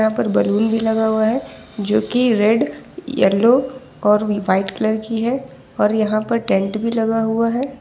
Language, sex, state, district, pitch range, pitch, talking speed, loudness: Hindi, female, Jharkhand, Ranchi, 215-235 Hz, 220 Hz, 175 wpm, -18 LUFS